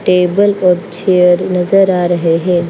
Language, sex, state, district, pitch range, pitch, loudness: Hindi, female, Bihar, Patna, 175-185 Hz, 180 Hz, -12 LUFS